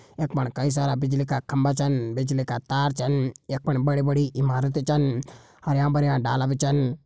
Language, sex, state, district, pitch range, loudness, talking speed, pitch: Garhwali, male, Uttarakhand, Tehri Garhwal, 130-140 Hz, -24 LUFS, 185 wpm, 140 Hz